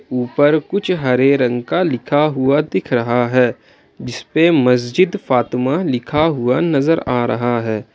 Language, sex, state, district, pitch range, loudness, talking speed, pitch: Hindi, male, Jharkhand, Ranchi, 120-155 Hz, -16 LUFS, 150 wpm, 130 Hz